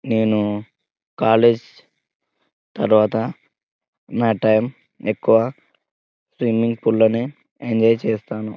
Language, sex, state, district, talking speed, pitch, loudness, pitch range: Telugu, male, Telangana, Nalgonda, 75 wpm, 110 Hz, -19 LUFS, 110-115 Hz